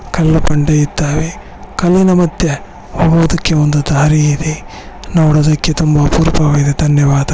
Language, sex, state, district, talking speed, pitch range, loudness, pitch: Kannada, male, Karnataka, Bellary, 105 wpm, 145-165 Hz, -12 LUFS, 155 Hz